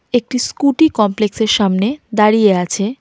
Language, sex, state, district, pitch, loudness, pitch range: Bengali, female, West Bengal, Cooch Behar, 215 Hz, -14 LUFS, 205-250 Hz